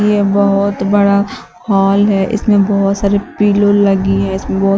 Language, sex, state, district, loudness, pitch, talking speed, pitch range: Hindi, female, Uttar Pradesh, Shamli, -13 LUFS, 200 Hz, 175 wpm, 195-205 Hz